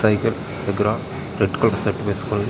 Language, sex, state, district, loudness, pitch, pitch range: Telugu, male, Andhra Pradesh, Srikakulam, -22 LUFS, 105 Hz, 100-110 Hz